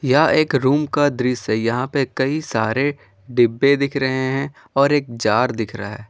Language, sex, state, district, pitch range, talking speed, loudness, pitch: Hindi, male, Jharkhand, Garhwa, 115-140 Hz, 195 wpm, -19 LUFS, 130 Hz